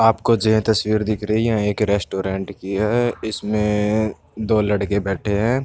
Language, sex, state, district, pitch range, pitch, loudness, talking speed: Hindi, male, Uttar Pradesh, Budaun, 100-110 Hz, 105 Hz, -20 LUFS, 160 wpm